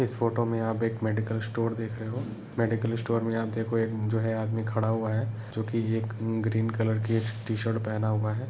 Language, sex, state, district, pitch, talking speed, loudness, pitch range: Hindi, male, Uttar Pradesh, Etah, 110 Hz, 210 wpm, -29 LUFS, 110-115 Hz